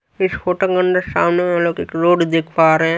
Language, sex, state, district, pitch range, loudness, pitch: Hindi, male, Haryana, Rohtak, 165-180 Hz, -16 LUFS, 175 Hz